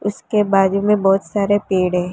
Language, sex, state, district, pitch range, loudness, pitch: Hindi, female, Gujarat, Gandhinagar, 190-205 Hz, -17 LUFS, 200 Hz